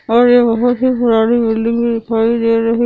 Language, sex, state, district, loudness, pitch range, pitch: Hindi, female, Andhra Pradesh, Anantapur, -13 LUFS, 230-240 Hz, 235 Hz